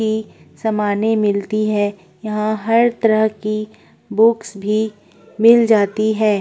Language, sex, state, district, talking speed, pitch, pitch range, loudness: Hindi, female, Uttar Pradesh, Budaun, 110 wpm, 215 Hz, 210-220 Hz, -17 LUFS